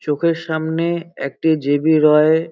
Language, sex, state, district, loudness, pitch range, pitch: Bengali, male, West Bengal, North 24 Parganas, -17 LUFS, 150-165 Hz, 160 Hz